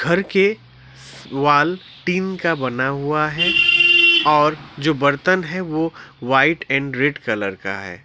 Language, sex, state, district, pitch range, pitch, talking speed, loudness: Hindi, male, West Bengal, Alipurduar, 135-175 Hz, 155 Hz, 140 wpm, -17 LUFS